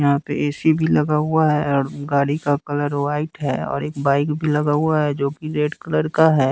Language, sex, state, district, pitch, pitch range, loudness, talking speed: Hindi, male, Bihar, West Champaran, 150 Hz, 145-155 Hz, -20 LUFS, 240 wpm